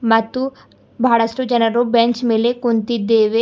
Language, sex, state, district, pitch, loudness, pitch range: Kannada, female, Karnataka, Bidar, 235 Hz, -17 LUFS, 225-240 Hz